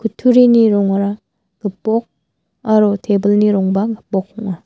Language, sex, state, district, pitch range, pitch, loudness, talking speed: Garo, female, Meghalaya, West Garo Hills, 195-220 Hz, 205 Hz, -15 LUFS, 105 wpm